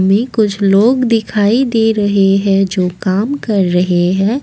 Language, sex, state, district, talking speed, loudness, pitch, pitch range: Hindi, female, Assam, Kamrup Metropolitan, 165 wpm, -13 LUFS, 205 Hz, 195-225 Hz